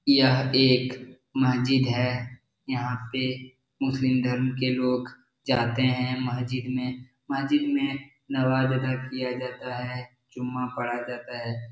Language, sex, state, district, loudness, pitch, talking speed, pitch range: Hindi, male, Bihar, Jahanabad, -26 LUFS, 130 Hz, 130 wpm, 125-130 Hz